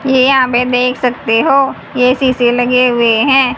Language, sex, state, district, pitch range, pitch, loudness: Hindi, female, Haryana, Charkhi Dadri, 245-265 Hz, 250 Hz, -11 LUFS